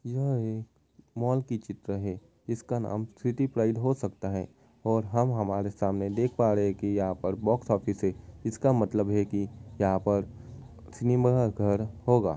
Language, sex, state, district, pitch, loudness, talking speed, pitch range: Hindi, male, Uttar Pradesh, Muzaffarnagar, 105 Hz, -29 LUFS, 165 wpm, 100-120 Hz